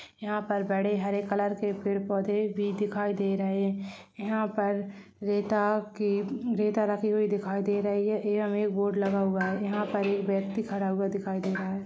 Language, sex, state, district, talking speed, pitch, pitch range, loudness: Hindi, female, Chhattisgarh, Rajnandgaon, 200 wpm, 205 Hz, 195-210 Hz, -29 LUFS